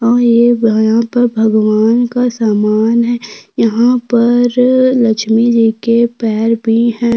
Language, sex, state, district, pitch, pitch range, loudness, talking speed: Hindi, female, Chhattisgarh, Sukma, 230 Hz, 225-240 Hz, -12 LUFS, 135 wpm